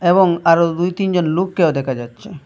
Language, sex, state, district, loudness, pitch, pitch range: Bengali, male, Assam, Hailakandi, -16 LUFS, 170 Hz, 165-185 Hz